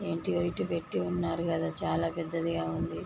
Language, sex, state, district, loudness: Telugu, female, Telangana, Nalgonda, -32 LUFS